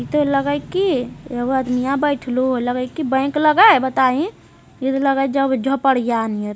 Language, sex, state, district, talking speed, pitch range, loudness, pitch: Hindi, female, Bihar, Jamui, 155 wpm, 255-280 Hz, -18 LUFS, 265 Hz